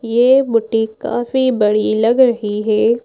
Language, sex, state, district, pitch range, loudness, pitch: Hindi, female, Madhya Pradesh, Bhopal, 215-240 Hz, -15 LUFS, 230 Hz